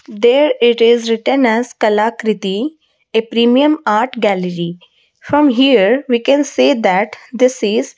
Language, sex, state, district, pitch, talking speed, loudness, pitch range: English, female, Odisha, Malkangiri, 235 Hz, 135 wpm, -13 LUFS, 215-265 Hz